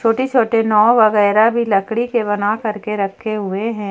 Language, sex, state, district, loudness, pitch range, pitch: Hindi, female, Jharkhand, Ranchi, -16 LUFS, 205-230 Hz, 215 Hz